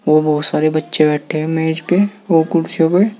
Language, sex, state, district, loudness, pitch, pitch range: Hindi, male, Uttar Pradesh, Saharanpur, -15 LUFS, 160 Hz, 155-175 Hz